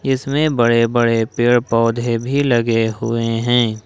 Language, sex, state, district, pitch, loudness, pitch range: Hindi, male, Jharkhand, Ranchi, 120 Hz, -16 LUFS, 115-120 Hz